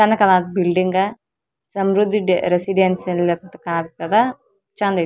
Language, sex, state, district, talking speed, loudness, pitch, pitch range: Kannada, female, Karnataka, Dharwad, 105 wpm, -18 LUFS, 190 Hz, 180-205 Hz